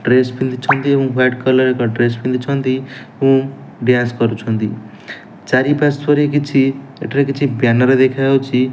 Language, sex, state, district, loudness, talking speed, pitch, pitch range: Odia, male, Odisha, Nuapada, -15 LUFS, 115 wpm, 130 Hz, 125-135 Hz